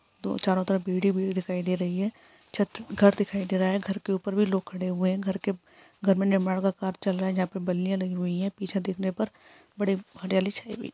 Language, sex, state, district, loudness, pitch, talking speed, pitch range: Hindi, female, Bihar, Jahanabad, -28 LUFS, 190 Hz, 240 wpm, 185-200 Hz